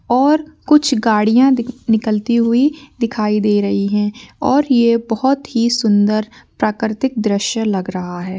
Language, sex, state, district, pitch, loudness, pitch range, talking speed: Hindi, female, Uttarakhand, Uttarkashi, 230 Hz, -16 LUFS, 210-255 Hz, 135 wpm